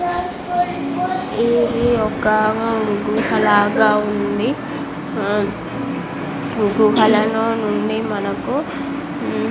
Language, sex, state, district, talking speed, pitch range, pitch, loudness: Telugu, female, Andhra Pradesh, Visakhapatnam, 55 wpm, 215-240 Hz, 220 Hz, -18 LUFS